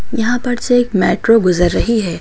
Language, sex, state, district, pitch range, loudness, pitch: Hindi, female, Uttar Pradesh, Lucknow, 180-245 Hz, -14 LUFS, 230 Hz